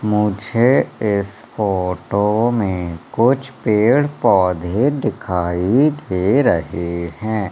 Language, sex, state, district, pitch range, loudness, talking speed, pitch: Hindi, male, Madhya Pradesh, Umaria, 90-120 Hz, -18 LUFS, 90 wpm, 105 Hz